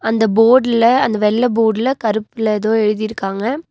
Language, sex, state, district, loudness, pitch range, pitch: Tamil, female, Tamil Nadu, Nilgiris, -15 LUFS, 215-240 Hz, 225 Hz